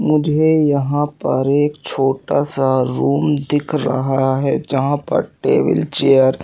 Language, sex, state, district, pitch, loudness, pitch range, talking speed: Hindi, male, Madhya Pradesh, Katni, 140 Hz, -17 LUFS, 135-150 Hz, 140 wpm